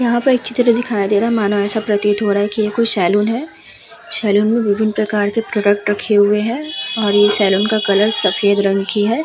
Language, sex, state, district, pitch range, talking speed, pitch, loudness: Hindi, female, Uttar Pradesh, Hamirpur, 205-230 Hz, 235 wpm, 210 Hz, -15 LUFS